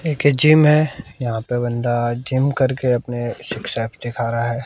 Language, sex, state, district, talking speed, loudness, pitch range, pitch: Hindi, male, Bihar, West Champaran, 180 wpm, -19 LUFS, 120-140 Hz, 125 Hz